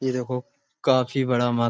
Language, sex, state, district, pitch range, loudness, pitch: Hindi, male, Uttar Pradesh, Budaun, 120-130 Hz, -24 LUFS, 125 Hz